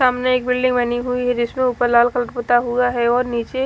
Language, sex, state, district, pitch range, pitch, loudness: Hindi, female, Haryana, Charkhi Dadri, 240-250 Hz, 245 Hz, -18 LUFS